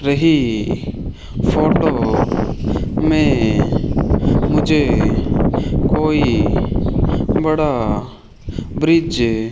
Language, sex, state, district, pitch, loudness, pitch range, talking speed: Hindi, male, Rajasthan, Bikaner, 140 Hz, -17 LUFS, 115-155 Hz, 50 wpm